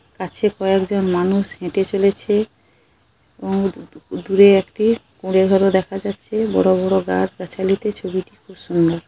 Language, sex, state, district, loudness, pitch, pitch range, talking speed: Bengali, female, West Bengal, Paschim Medinipur, -18 LUFS, 195 Hz, 185-200 Hz, 110 wpm